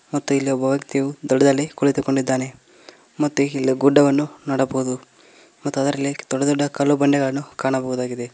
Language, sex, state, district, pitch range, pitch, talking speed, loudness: Kannada, male, Karnataka, Koppal, 130-140 Hz, 140 Hz, 120 wpm, -20 LUFS